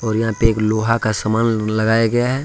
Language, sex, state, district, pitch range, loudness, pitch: Hindi, male, Jharkhand, Ranchi, 110-115 Hz, -17 LUFS, 115 Hz